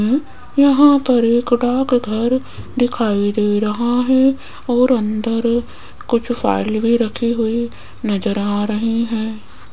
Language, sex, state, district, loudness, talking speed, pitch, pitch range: Hindi, female, Rajasthan, Jaipur, -17 LUFS, 125 wpm, 235 Hz, 215-245 Hz